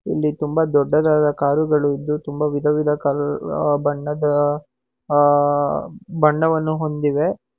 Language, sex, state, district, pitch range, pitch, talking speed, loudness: Kannada, male, Karnataka, Bangalore, 145-150 Hz, 150 Hz, 95 wpm, -19 LUFS